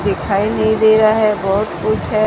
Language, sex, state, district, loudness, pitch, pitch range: Hindi, female, Odisha, Sambalpur, -15 LUFS, 215 Hz, 200-220 Hz